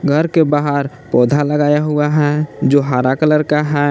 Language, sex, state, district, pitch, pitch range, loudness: Hindi, male, Jharkhand, Palamu, 145 Hz, 145-150 Hz, -14 LUFS